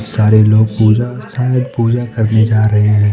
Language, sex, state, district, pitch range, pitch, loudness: Hindi, male, Jharkhand, Deoghar, 110-120 Hz, 110 Hz, -12 LUFS